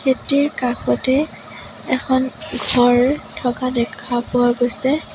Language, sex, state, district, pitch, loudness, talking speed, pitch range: Assamese, female, Assam, Sonitpur, 255 Hz, -18 LUFS, 95 wpm, 245-270 Hz